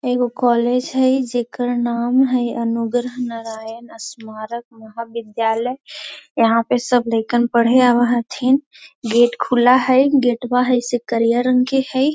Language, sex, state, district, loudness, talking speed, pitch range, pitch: Magahi, female, Bihar, Gaya, -17 LUFS, 135 wpm, 230-250 Hz, 245 Hz